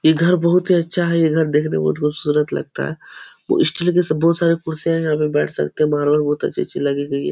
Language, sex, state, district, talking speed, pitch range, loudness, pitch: Hindi, male, Uttar Pradesh, Etah, 280 wpm, 150-170 Hz, -18 LUFS, 155 Hz